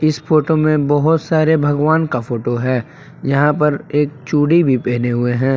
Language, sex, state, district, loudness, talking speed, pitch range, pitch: Hindi, male, Jharkhand, Palamu, -16 LUFS, 185 wpm, 130-155 Hz, 145 Hz